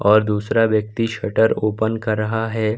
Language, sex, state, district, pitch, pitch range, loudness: Hindi, male, Bihar, Samastipur, 110 Hz, 105-110 Hz, -19 LUFS